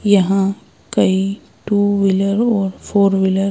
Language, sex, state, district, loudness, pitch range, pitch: Hindi, female, Madhya Pradesh, Bhopal, -16 LUFS, 195-205 Hz, 195 Hz